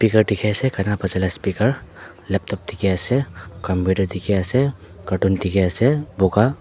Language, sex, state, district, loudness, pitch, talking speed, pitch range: Nagamese, male, Nagaland, Dimapur, -20 LUFS, 95 Hz, 155 wpm, 95-110 Hz